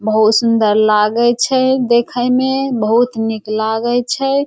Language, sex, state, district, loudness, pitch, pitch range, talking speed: Maithili, female, Bihar, Samastipur, -14 LUFS, 235 Hz, 220-250 Hz, 135 wpm